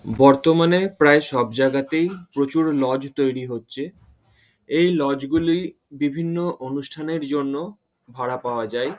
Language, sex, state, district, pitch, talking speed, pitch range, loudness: Bengali, male, West Bengal, Paschim Medinipur, 145 Hz, 115 wpm, 135-165 Hz, -21 LUFS